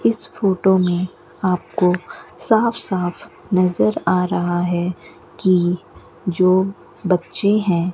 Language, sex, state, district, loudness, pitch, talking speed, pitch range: Hindi, female, Rajasthan, Bikaner, -18 LUFS, 180 Hz, 105 wpm, 175-190 Hz